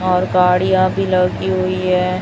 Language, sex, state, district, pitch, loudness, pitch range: Hindi, female, Chhattisgarh, Raipur, 185 Hz, -16 LUFS, 180-185 Hz